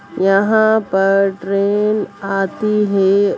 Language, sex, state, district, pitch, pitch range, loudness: Hindi, female, Bihar, Darbhanga, 200 Hz, 195-210 Hz, -15 LUFS